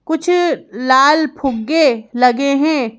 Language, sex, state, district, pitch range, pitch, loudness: Hindi, female, Madhya Pradesh, Bhopal, 250-310 Hz, 275 Hz, -14 LUFS